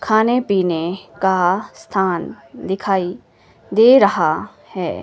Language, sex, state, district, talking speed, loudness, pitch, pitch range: Hindi, female, Himachal Pradesh, Shimla, 95 wpm, -17 LUFS, 190 Hz, 180-215 Hz